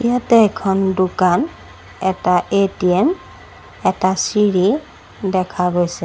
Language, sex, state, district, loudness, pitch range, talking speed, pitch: Assamese, female, Assam, Sonitpur, -17 LUFS, 180-215 Hz, 90 wpm, 190 Hz